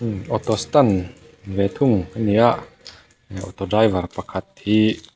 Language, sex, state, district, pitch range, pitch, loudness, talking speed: Mizo, male, Mizoram, Aizawl, 95-115 Hz, 105 Hz, -20 LUFS, 130 wpm